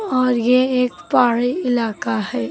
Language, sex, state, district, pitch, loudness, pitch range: Hindi, female, Uttar Pradesh, Lucknow, 245 Hz, -18 LUFS, 230-250 Hz